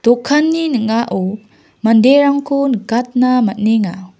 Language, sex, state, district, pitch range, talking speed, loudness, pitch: Garo, female, Meghalaya, West Garo Hills, 220-275 Hz, 70 wpm, -14 LUFS, 240 Hz